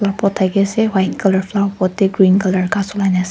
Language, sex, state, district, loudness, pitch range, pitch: Nagamese, female, Nagaland, Dimapur, -16 LUFS, 190-200 Hz, 195 Hz